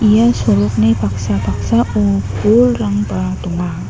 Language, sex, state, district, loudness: Garo, female, Meghalaya, North Garo Hills, -15 LUFS